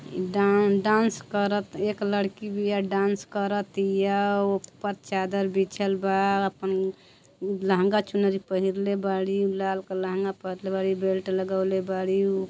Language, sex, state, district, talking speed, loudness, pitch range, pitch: Bhojpuri, female, Uttar Pradesh, Deoria, 135 wpm, -26 LUFS, 190-200 Hz, 195 Hz